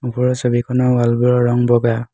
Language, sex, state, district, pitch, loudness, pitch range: Assamese, male, Assam, Hailakandi, 120 Hz, -16 LUFS, 120-125 Hz